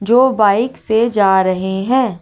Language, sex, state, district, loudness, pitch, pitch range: Hindi, female, Rajasthan, Jaipur, -14 LUFS, 215 Hz, 190-240 Hz